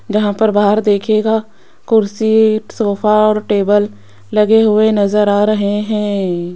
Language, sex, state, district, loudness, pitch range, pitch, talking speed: Hindi, female, Rajasthan, Jaipur, -13 LUFS, 205-215 Hz, 210 Hz, 130 wpm